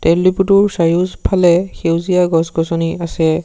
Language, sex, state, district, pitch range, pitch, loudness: Assamese, male, Assam, Sonitpur, 165-185 Hz, 170 Hz, -14 LUFS